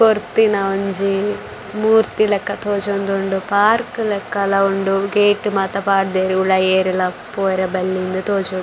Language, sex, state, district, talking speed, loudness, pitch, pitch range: Tulu, female, Karnataka, Dakshina Kannada, 120 wpm, -17 LUFS, 195 Hz, 190-205 Hz